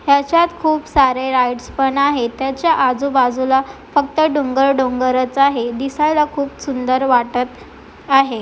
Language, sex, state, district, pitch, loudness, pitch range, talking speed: Marathi, female, Maharashtra, Chandrapur, 270 Hz, -16 LUFS, 255-285 Hz, 130 wpm